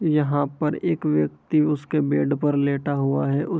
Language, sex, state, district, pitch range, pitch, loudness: Hindi, male, Bihar, Begusarai, 140-150 Hz, 145 Hz, -22 LUFS